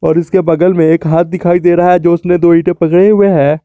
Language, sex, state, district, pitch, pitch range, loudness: Hindi, male, Jharkhand, Garhwa, 175 Hz, 165-180 Hz, -10 LUFS